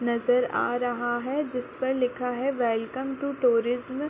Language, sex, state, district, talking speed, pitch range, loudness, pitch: Hindi, female, Chhattisgarh, Korba, 175 wpm, 240-265 Hz, -27 LUFS, 250 Hz